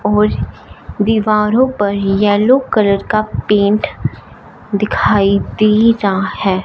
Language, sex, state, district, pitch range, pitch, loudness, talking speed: Hindi, male, Punjab, Fazilka, 195-215 Hz, 205 Hz, -14 LUFS, 100 wpm